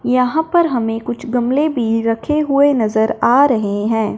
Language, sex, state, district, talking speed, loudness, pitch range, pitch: Hindi, male, Punjab, Fazilka, 170 wpm, -16 LUFS, 225-285 Hz, 245 Hz